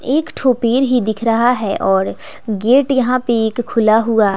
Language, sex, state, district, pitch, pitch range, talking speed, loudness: Hindi, female, Bihar, West Champaran, 235 Hz, 220-255 Hz, 190 wpm, -15 LUFS